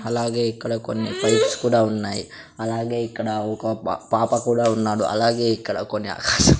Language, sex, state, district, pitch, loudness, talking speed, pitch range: Telugu, male, Andhra Pradesh, Sri Satya Sai, 110 Hz, -22 LUFS, 135 wpm, 110-115 Hz